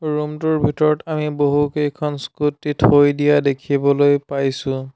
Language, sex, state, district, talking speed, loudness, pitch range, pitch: Assamese, male, Assam, Sonitpur, 110 wpm, -18 LUFS, 140-150 Hz, 145 Hz